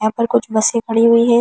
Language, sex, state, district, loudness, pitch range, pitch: Hindi, female, Delhi, New Delhi, -15 LUFS, 225-235 Hz, 230 Hz